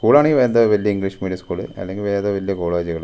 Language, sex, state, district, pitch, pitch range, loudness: Malayalam, male, Kerala, Wayanad, 100 Hz, 95-105 Hz, -19 LUFS